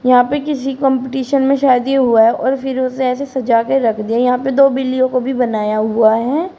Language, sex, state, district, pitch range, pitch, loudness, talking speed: Hindi, female, Uttar Pradesh, Shamli, 245-270 Hz, 260 Hz, -15 LUFS, 230 wpm